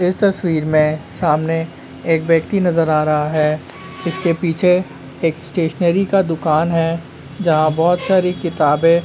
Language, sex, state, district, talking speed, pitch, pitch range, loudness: Hindi, male, West Bengal, Kolkata, 145 wpm, 165 Hz, 155-180 Hz, -17 LUFS